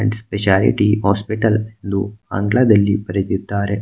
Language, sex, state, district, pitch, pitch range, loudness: Kannada, male, Karnataka, Mysore, 100 Hz, 100-110 Hz, -17 LUFS